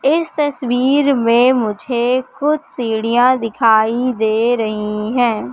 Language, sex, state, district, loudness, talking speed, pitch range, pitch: Hindi, female, Madhya Pradesh, Katni, -16 LUFS, 110 wpm, 225-265 Hz, 245 Hz